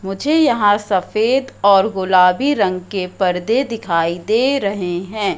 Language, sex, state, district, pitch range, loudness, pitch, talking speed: Hindi, female, Madhya Pradesh, Katni, 185-230 Hz, -16 LUFS, 200 Hz, 135 wpm